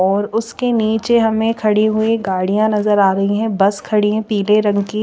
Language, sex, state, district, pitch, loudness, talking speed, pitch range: Hindi, female, Chandigarh, Chandigarh, 215 Hz, -16 LUFS, 190 wpm, 205-220 Hz